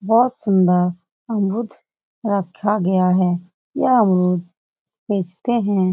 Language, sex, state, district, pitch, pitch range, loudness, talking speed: Hindi, female, Bihar, Lakhisarai, 195 Hz, 180-220 Hz, -19 LUFS, 100 wpm